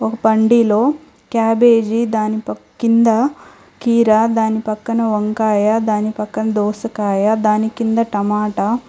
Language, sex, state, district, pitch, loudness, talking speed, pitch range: Telugu, female, Telangana, Hyderabad, 220 Hz, -16 LUFS, 110 wpm, 215-230 Hz